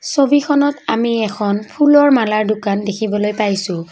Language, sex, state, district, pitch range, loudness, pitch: Assamese, female, Assam, Kamrup Metropolitan, 205-285 Hz, -15 LUFS, 215 Hz